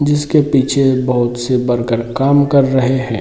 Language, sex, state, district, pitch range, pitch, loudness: Hindi, male, Bihar, Sitamarhi, 120-140 Hz, 130 Hz, -14 LUFS